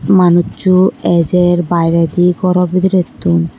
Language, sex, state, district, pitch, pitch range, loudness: Chakma, female, Tripura, West Tripura, 175 Hz, 170-185 Hz, -12 LUFS